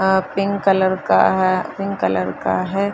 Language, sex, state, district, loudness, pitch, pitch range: Hindi, female, Bihar, Madhepura, -18 LUFS, 190 Hz, 185-195 Hz